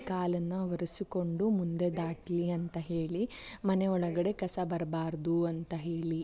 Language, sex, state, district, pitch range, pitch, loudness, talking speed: Kannada, female, Karnataka, Bellary, 170-185 Hz, 175 Hz, -33 LUFS, 125 wpm